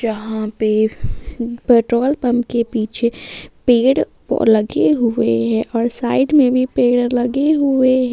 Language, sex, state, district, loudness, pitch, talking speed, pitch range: Hindi, female, Jharkhand, Palamu, -16 LUFS, 240 Hz, 135 wpm, 220-255 Hz